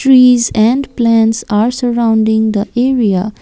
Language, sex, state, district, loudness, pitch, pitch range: English, female, Assam, Kamrup Metropolitan, -12 LUFS, 230 Hz, 220-245 Hz